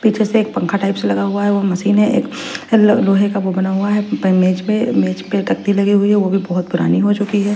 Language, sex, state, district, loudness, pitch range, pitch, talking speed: Hindi, female, Punjab, Fazilka, -15 LUFS, 190-210 Hz, 200 Hz, 285 wpm